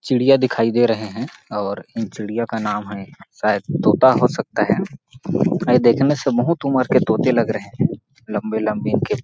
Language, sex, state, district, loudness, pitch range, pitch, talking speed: Hindi, male, Chhattisgarh, Sarguja, -19 LUFS, 110-130 Hz, 115 Hz, 180 wpm